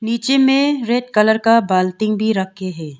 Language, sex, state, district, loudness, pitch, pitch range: Hindi, female, Arunachal Pradesh, Longding, -16 LUFS, 220 Hz, 190-240 Hz